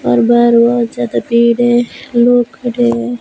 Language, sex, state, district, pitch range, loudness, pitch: Hindi, female, Rajasthan, Bikaner, 235-240 Hz, -12 LUFS, 235 Hz